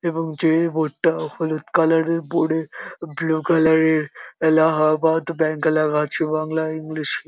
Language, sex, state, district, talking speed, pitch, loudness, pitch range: Bengali, male, West Bengal, Jhargram, 125 wpm, 160 Hz, -20 LUFS, 155-165 Hz